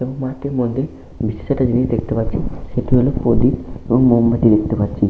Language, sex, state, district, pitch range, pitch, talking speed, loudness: Bengali, male, West Bengal, Malda, 110-130 Hz, 120 Hz, 155 wpm, -18 LUFS